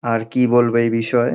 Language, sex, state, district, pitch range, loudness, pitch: Bengali, male, West Bengal, North 24 Parganas, 115-120 Hz, -17 LUFS, 120 Hz